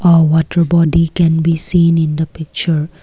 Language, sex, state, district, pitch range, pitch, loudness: English, female, Assam, Kamrup Metropolitan, 160-170 Hz, 165 Hz, -13 LUFS